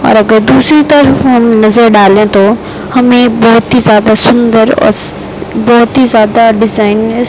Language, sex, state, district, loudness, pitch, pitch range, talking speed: Hindi, female, Rajasthan, Bikaner, -6 LUFS, 230 Hz, 215-245 Hz, 155 wpm